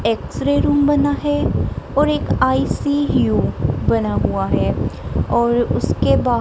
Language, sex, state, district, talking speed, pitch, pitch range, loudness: Hindi, female, Punjab, Kapurthala, 120 wpm, 285 Hz, 240-290 Hz, -18 LUFS